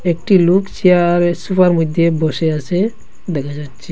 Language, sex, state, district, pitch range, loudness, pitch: Bengali, male, Assam, Hailakandi, 160-180 Hz, -15 LUFS, 175 Hz